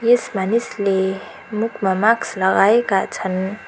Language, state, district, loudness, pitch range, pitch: Nepali, West Bengal, Darjeeling, -19 LUFS, 190-230 Hz, 200 Hz